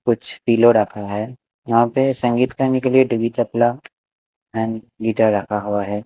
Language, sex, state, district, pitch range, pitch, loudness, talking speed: Hindi, male, Maharashtra, Mumbai Suburban, 110-125 Hz, 115 Hz, -18 LUFS, 160 wpm